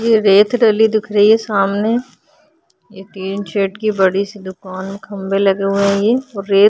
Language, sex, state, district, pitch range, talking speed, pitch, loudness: Hindi, female, Uttar Pradesh, Jyotiba Phule Nagar, 195-220 Hz, 180 wpm, 200 Hz, -15 LUFS